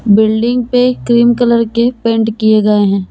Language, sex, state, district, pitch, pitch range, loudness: Hindi, female, Jharkhand, Deoghar, 230 Hz, 215-240 Hz, -11 LUFS